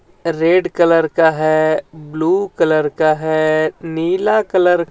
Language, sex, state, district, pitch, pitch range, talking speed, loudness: Hindi, male, Jharkhand, Ranchi, 160 Hz, 155-175 Hz, 135 wpm, -15 LUFS